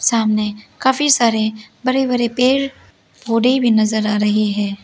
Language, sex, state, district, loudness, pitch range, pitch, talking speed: Hindi, female, Arunachal Pradesh, Lower Dibang Valley, -17 LUFS, 215-255 Hz, 230 Hz, 150 wpm